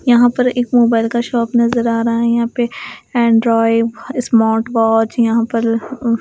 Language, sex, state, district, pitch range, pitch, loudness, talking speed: Hindi, female, Bihar, West Champaran, 230-240 Hz, 235 Hz, -15 LUFS, 205 wpm